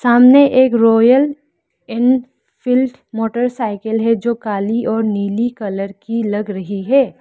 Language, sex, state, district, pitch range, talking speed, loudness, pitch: Hindi, female, Arunachal Pradesh, Lower Dibang Valley, 210-255 Hz, 125 wpm, -15 LUFS, 230 Hz